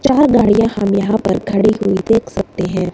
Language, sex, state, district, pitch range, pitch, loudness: Hindi, female, Himachal Pradesh, Shimla, 195-225 Hz, 210 Hz, -14 LUFS